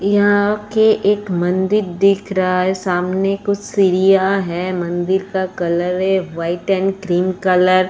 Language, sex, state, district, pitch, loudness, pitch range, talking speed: Hindi, female, Uttar Pradesh, Etah, 190 Hz, -16 LUFS, 180-195 Hz, 150 wpm